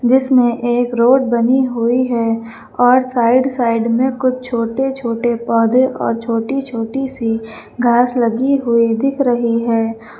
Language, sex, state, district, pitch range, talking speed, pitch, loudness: Hindi, female, Uttar Pradesh, Lucknow, 230-255 Hz, 140 wpm, 240 Hz, -15 LUFS